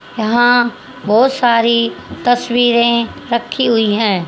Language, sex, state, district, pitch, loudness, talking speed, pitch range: Hindi, female, Haryana, Charkhi Dadri, 235 Hz, -14 LUFS, 100 wpm, 230-245 Hz